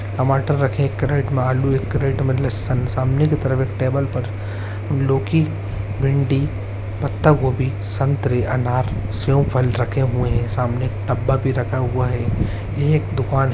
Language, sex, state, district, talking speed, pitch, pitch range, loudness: Hindi, male, Uttarakhand, Uttarkashi, 160 wpm, 130 Hz, 105-135 Hz, -20 LUFS